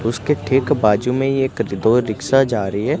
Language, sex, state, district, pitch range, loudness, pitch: Hindi, male, Gujarat, Gandhinagar, 110-135 Hz, -18 LUFS, 120 Hz